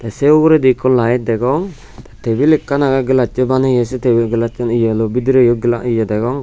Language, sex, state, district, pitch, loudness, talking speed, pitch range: Chakma, male, Tripura, Unakoti, 125 Hz, -14 LUFS, 160 wpm, 115-130 Hz